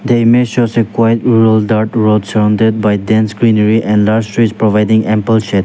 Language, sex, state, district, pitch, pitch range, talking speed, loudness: English, male, Nagaland, Dimapur, 110 Hz, 105-115 Hz, 190 wpm, -11 LUFS